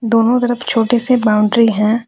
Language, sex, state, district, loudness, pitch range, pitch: Hindi, female, Jharkhand, Deoghar, -14 LUFS, 220-240 Hz, 230 Hz